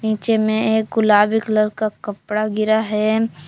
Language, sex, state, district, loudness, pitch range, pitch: Hindi, female, Jharkhand, Palamu, -18 LUFS, 210-220 Hz, 215 Hz